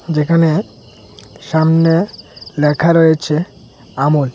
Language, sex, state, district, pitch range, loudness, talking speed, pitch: Bengali, male, Tripura, West Tripura, 115-165 Hz, -14 LUFS, 70 wpm, 150 Hz